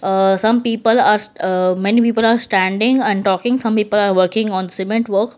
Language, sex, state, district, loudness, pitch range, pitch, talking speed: English, female, Gujarat, Valsad, -15 LUFS, 190-230 Hz, 210 Hz, 200 wpm